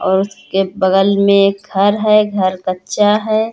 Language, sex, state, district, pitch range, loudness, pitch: Hindi, female, Uttar Pradesh, Hamirpur, 190-210 Hz, -14 LUFS, 200 Hz